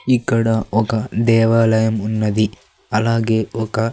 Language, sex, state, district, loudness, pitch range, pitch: Telugu, male, Andhra Pradesh, Sri Satya Sai, -17 LUFS, 110-115 Hz, 115 Hz